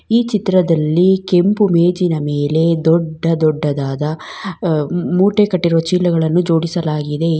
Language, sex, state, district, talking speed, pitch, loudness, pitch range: Kannada, female, Karnataka, Bangalore, 105 wpm, 165 Hz, -15 LUFS, 155-180 Hz